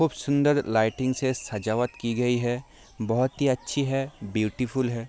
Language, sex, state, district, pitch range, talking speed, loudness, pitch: Hindi, male, Bihar, Sitamarhi, 115-135 Hz, 175 wpm, -26 LUFS, 125 Hz